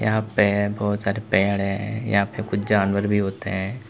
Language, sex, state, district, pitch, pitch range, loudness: Hindi, male, Uttar Pradesh, Lalitpur, 100 Hz, 100-105 Hz, -22 LUFS